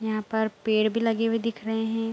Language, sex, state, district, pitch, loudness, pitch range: Hindi, female, Bihar, Araria, 225 Hz, -26 LUFS, 220-225 Hz